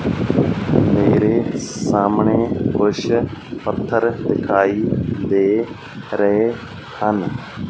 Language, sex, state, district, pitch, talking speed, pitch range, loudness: Punjabi, male, Punjab, Fazilka, 105 Hz, 60 wpm, 100-115 Hz, -18 LUFS